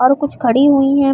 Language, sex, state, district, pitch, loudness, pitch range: Hindi, female, Chhattisgarh, Bilaspur, 275 Hz, -13 LUFS, 265-285 Hz